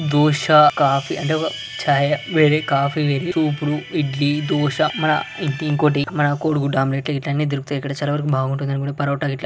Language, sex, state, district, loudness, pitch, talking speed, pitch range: Telugu, male, Telangana, Karimnagar, -19 LUFS, 145 Hz, 165 wpm, 140-150 Hz